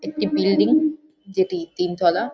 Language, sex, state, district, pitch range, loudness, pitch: Bengali, female, West Bengal, Jhargram, 155-195 Hz, -21 LUFS, 175 Hz